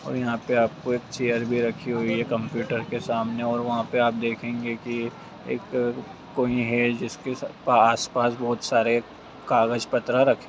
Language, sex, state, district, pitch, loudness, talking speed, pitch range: Hindi, male, Bihar, Jamui, 120 Hz, -25 LUFS, 170 wpm, 115-120 Hz